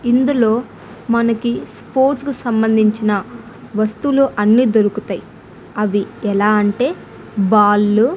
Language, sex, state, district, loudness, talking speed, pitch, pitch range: Telugu, female, Andhra Pradesh, Annamaya, -16 LUFS, 95 wpm, 220 Hz, 210-245 Hz